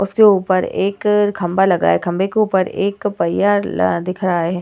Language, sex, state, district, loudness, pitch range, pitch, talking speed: Hindi, female, Uttar Pradesh, Etah, -16 LUFS, 180-205 Hz, 195 Hz, 195 wpm